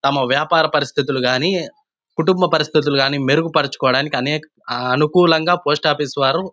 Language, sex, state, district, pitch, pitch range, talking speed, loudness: Telugu, male, Andhra Pradesh, Anantapur, 150 Hz, 135-165 Hz, 140 wpm, -17 LUFS